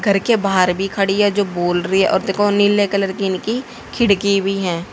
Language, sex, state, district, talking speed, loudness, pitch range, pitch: Hindi, female, Haryana, Jhajjar, 230 wpm, -17 LUFS, 190-205 Hz, 195 Hz